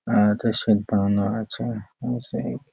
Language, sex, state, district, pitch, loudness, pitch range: Bengali, male, West Bengal, Jhargram, 110 Hz, -24 LUFS, 105-115 Hz